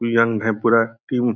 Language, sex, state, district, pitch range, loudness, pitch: Hindi, male, Bihar, Purnia, 115-120 Hz, -19 LUFS, 115 Hz